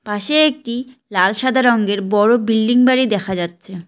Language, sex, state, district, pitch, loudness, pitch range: Bengali, female, West Bengal, Cooch Behar, 225 Hz, -16 LUFS, 200-255 Hz